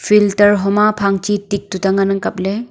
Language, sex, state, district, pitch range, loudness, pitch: Wancho, female, Arunachal Pradesh, Longding, 195-210 Hz, -15 LUFS, 200 Hz